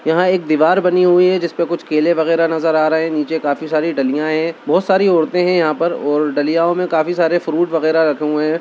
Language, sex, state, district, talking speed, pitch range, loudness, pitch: Hindi, female, Bihar, Bhagalpur, 250 wpm, 155-175 Hz, -15 LUFS, 165 Hz